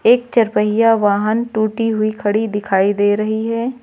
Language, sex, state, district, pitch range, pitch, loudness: Hindi, female, Uttar Pradesh, Lucknow, 210-230 Hz, 215 Hz, -16 LUFS